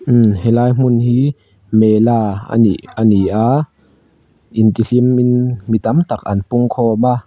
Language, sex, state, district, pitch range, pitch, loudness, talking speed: Mizo, male, Mizoram, Aizawl, 110-125 Hz, 115 Hz, -14 LUFS, 115 wpm